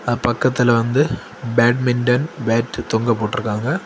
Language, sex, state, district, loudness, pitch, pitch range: Tamil, male, Tamil Nadu, Kanyakumari, -18 LUFS, 120 Hz, 115-125 Hz